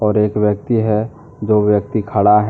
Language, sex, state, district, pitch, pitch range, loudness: Hindi, male, Jharkhand, Deoghar, 105 Hz, 105-110 Hz, -16 LUFS